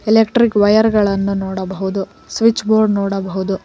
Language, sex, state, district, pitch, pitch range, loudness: Kannada, female, Karnataka, Koppal, 205 Hz, 195-220 Hz, -16 LUFS